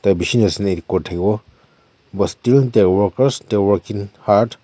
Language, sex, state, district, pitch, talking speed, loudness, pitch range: Nagamese, male, Nagaland, Kohima, 105 Hz, 155 wpm, -17 LUFS, 100-120 Hz